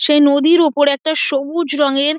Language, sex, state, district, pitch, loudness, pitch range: Bengali, female, West Bengal, Dakshin Dinajpur, 290 Hz, -14 LUFS, 285-315 Hz